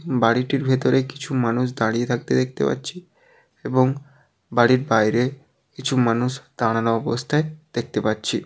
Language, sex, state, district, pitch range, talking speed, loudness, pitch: Bengali, male, West Bengal, Jalpaiguri, 115-140 Hz, 120 wpm, -21 LUFS, 125 Hz